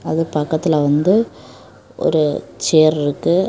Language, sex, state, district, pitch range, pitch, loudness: Tamil, female, Tamil Nadu, Kanyakumari, 150-165 Hz, 155 Hz, -17 LUFS